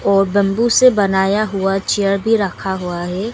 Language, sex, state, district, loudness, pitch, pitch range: Hindi, female, Arunachal Pradesh, Longding, -16 LUFS, 195 Hz, 195-215 Hz